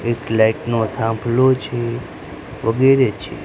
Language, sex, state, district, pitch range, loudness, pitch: Gujarati, male, Gujarat, Gandhinagar, 110-125 Hz, -18 LUFS, 115 Hz